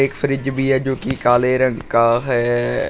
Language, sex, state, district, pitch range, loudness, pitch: Hindi, male, Uttar Pradesh, Shamli, 120-135 Hz, -18 LUFS, 130 Hz